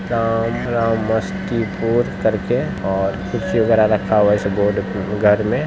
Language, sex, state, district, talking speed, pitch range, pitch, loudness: Hindi, male, Bihar, Samastipur, 95 wpm, 100-115 Hz, 110 Hz, -18 LUFS